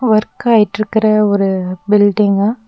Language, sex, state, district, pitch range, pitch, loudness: Tamil, female, Tamil Nadu, Nilgiris, 200-215 Hz, 210 Hz, -13 LUFS